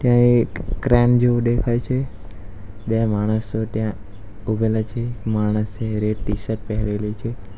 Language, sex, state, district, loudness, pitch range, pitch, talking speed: Gujarati, male, Gujarat, Valsad, -21 LUFS, 105-120 Hz, 110 Hz, 120 wpm